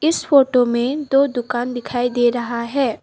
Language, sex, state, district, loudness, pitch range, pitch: Hindi, female, Assam, Sonitpur, -18 LUFS, 240-275 Hz, 245 Hz